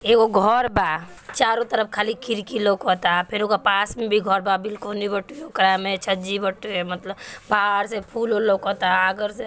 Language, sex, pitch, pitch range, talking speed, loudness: Bhojpuri, female, 205 Hz, 190-215 Hz, 125 wpm, -21 LUFS